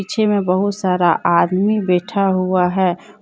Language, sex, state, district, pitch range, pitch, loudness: Hindi, female, Jharkhand, Deoghar, 180-205 Hz, 185 Hz, -17 LUFS